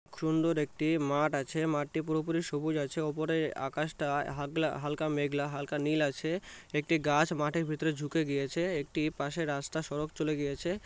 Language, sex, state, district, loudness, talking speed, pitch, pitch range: Bengali, male, West Bengal, North 24 Parganas, -32 LUFS, 160 wpm, 150 Hz, 145-160 Hz